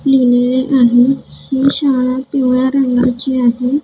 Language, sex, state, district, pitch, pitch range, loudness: Marathi, female, Maharashtra, Gondia, 260 Hz, 250-270 Hz, -13 LUFS